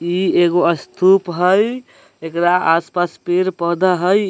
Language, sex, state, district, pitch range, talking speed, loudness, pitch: Bajjika, male, Bihar, Vaishali, 170-185 Hz, 110 wpm, -16 LUFS, 180 Hz